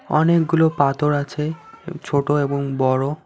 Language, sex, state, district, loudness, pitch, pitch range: Bengali, male, West Bengal, Alipurduar, -19 LUFS, 150 Hz, 140-160 Hz